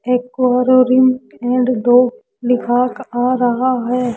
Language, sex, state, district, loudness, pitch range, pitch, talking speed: Hindi, female, Rajasthan, Jaipur, -15 LUFS, 245-255 Hz, 250 Hz, 100 wpm